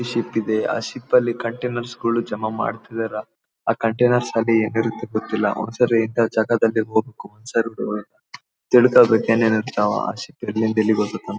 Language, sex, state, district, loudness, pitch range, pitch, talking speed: Kannada, male, Karnataka, Bellary, -20 LUFS, 110-115 Hz, 115 Hz, 165 wpm